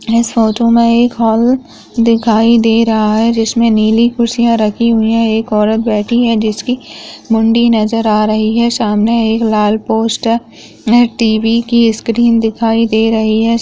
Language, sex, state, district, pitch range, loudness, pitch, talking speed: Hindi, female, Rajasthan, Churu, 220-235 Hz, -12 LUFS, 225 Hz, 145 wpm